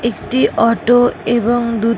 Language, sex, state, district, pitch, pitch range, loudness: Bengali, female, West Bengal, Kolkata, 235 Hz, 230-240 Hz, -14 LUFS